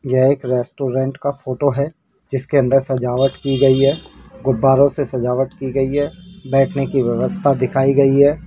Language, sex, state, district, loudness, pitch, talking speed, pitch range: Hindi, male, Rajasthan, Jaipur, -17 LUFS, 135 Hz, 170 wpm, 130-140 Hz